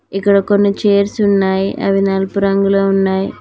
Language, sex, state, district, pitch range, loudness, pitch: Telugu, female, Telangana, Mahabubabad, 195-200 Hz, -14 LUFS, 195 Hz